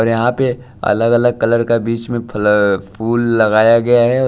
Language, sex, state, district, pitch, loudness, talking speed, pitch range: Hindi, male, Maharashtra, Washim, 115 Hz, -14 LUFS, 180 wpm, 110-120 Hz